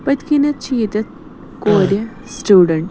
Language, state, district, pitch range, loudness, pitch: Kashmiri, Punjab, Kapurthala, 200-270 Hz, -15 LUFS, 225 Hz